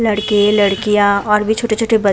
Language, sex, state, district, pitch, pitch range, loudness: Hindi, female, Uttar Pradesh, Budaun, 210 Hz, 205-220 Hz, -14 LUFS